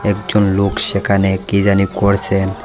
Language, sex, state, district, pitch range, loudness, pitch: Bengali, male, Assam, Hailakandi, 95-100 Hz, -15 LUFS, 100 Hz